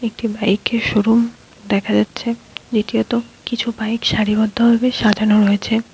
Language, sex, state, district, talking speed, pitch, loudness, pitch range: Bengali, female, West Bengal, Alipurduar, 140 wpm, 225 Hz, -17 LUFS, 210-235 Hz